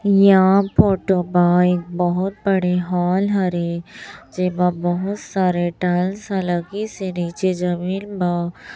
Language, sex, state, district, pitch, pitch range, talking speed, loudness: Hindi, male, Chhattisgarh, Raipur, 180 Hz, 175-195 Hz, 115 wpm, -19 LUFS